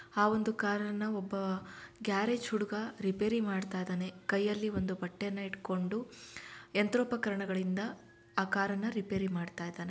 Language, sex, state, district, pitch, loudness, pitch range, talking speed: Kannada, female, Karnataka, Shimoga, 200 Hz, -35 LUFS, 190-215 Hz, 120 wpm